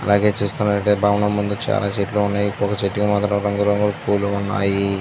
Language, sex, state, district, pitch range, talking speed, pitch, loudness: Telugu, male, Andhra Pradesh, Visakhapatnam, 100-105 Hz, 170 wpm, 100 Hz, -19 LUFS